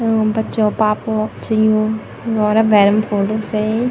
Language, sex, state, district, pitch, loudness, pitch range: Garhwali, female, Uttarakhand, Tehri Garhwal, 215 Hz, -16 LUFS, 215-220 Hz